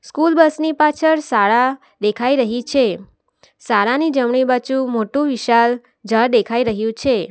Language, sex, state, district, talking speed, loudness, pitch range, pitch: Gujarati, female, Gujarat, Valsad, 140 wpm, -17 LUFS, 235-285 Hz, 255 Hz